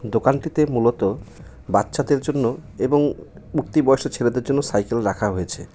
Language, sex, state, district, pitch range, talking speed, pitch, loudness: Bengali, male, West Bengal, Cooch Behar, 115-145 Hz, 125 wpm, 125 Hz, -21 LUFS